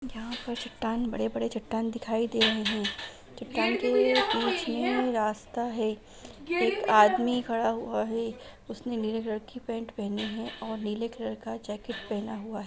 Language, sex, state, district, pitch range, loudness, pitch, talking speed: Bhojpuri, female, Bihar, Saran, 215-235 Hz, -29 LUFS, 225 Hz, 175 wpm